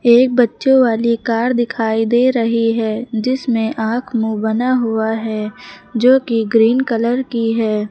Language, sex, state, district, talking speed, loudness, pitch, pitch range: Hindi, female, Uttar Pradesh, Lucknow, 150 wpm, -16 LUFS, 230 Hz, 225-245 Hz